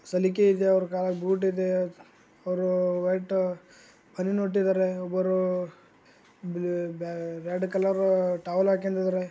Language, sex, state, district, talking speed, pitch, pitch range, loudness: Kannada, male, Karnataka, Gulbarga, 105 wpm, 185 Hz, 180-190 Hz, -27 LUFS